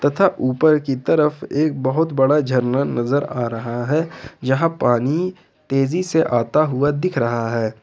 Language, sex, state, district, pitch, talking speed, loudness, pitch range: Hindi, male, Jharkhand, Ranchi, 140 Hz, 160 wpm, -19 LUFS, 125-155 Hz